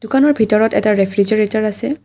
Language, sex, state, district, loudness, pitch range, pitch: Assamese, female, Assam, Kamrup Metropolitan, -15 LUFS, 210-235 Hz, 215 Hz